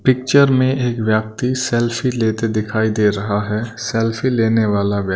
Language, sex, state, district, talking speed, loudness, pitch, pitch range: Hindi, male, Punjab, Kapurthala, 165 wpm, -17 LUFS, 115 Hz, 110-125 Hz